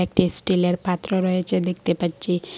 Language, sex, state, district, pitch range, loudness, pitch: Bengali, female, Assam, Hailakandi, 175-185 Hz, -22 LUFS, 180 Hz